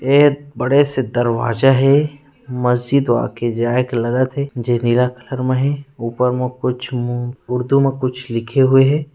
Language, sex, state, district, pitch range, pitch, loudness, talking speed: Chhattisgarhi, male, Chhattisgarh, Rajnandgaon, 120-135 Hz, 125 Hz, -17 LUFS, 170 wpm